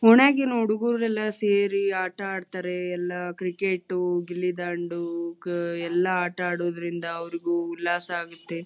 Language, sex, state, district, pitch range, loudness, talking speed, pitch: Kannada, female, Karnataka, Gulbarga, 170-195 Hz, -26 LUFS, 105 wpm, 180 Hz